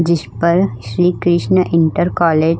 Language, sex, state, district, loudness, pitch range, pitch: Hindi, female, Uttar Pradesh, Budaun, -15 LUFS, 160-175 Hz, 170 Hz